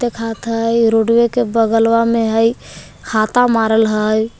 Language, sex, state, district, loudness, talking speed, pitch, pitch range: Magahi, female, Jharkhand, Palamu, -15 LUFS, 135 wpm, 230 Hz, 225-230 Hz